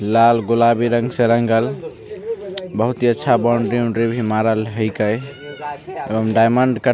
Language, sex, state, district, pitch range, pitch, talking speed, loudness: Maithili, male, Bihar, Begusarai, 115-130 Hz, 120 Hz, 130 wpm, -17 LUFS